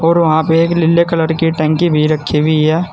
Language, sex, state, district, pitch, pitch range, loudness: Hindi, male, Uttar Pradesh, Saharanpur, 160 Hz, 155-165 Hz, -13 LUFS